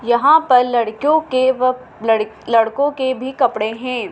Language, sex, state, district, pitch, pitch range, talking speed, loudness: Hindi, female, Madhya Pradesh, Dhar, 255 Hz, 225-260 Hz, 145 wpm, -16 LUFS